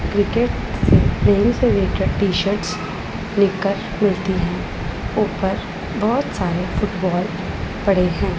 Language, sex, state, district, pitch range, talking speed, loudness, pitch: Hindi, female, Punjab, Pathankot, 180-200 Hz, 80 wpm, -20 LUFS, 190 Hz